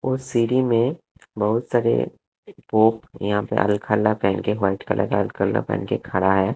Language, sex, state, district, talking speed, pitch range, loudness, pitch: Hindi, male, Punjab, Kapurthala, 155 wpm, 105-120 Hz, -22 LUFS, 110 Hz